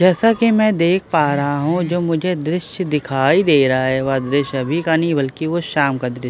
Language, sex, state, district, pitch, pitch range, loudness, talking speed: Hindi, male, Bihar, Katihar, 160 Hz, 135-175 Hz, -17 LUFS, 240 wpm